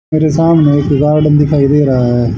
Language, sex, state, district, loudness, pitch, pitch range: Hindi, male, Haryana, Charkhi Dadri, -10 LUFS, 150 Hz, 140-150 Hz